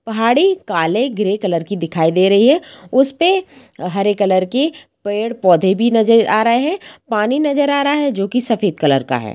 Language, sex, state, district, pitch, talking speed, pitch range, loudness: Hindi, female, Bihar, East Champaran, 225 Hz, 195 wpm, 190-275 Hz, -15 LUFS